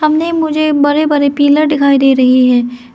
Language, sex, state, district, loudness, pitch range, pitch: Hindi, female, Arunachal Pradesh, Lower Dibang Valley, -11 LUFS, 260-305 Hz, 290 Hz